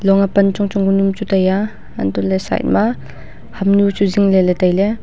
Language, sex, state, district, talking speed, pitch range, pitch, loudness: Wancho, female, Arunachal Pradesh, Longding, 215 wpm, 190-200 Hz, 195 Hz, -15 LUFS